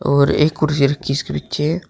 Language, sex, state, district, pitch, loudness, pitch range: Hindi, male, Uttar Pradesh, Shamli, 150 Hz, -18 LUFS, 140-155 Hz